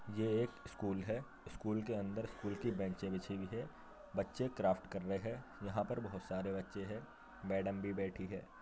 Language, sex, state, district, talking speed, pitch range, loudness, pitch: Hindi, male, Uttar Pradesh, Jyotiba Phule Nagar, 195 wpm, 95-110 Hz, -42 LUFS, 100 Hz